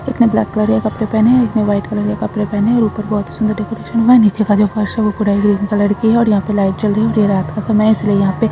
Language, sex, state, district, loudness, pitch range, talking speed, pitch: Hindi, female, Maharashtra, Dhule, -14 LUFS, 205-220 Hz, 345 wpm, 215 Hz